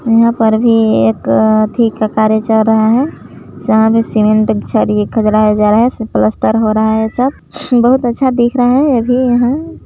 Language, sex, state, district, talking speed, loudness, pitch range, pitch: Hindi, male, Chhattisgarh, Balrampur, 190 wpm, -11 LUFS, 215-245 Hz, 220 Hz